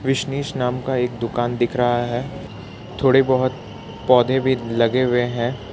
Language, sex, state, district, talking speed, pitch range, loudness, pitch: Hindi, male, Jharkhand, Ranchi, 155 wpm, 120-130 Hz, -20 LUFS, 125 Hz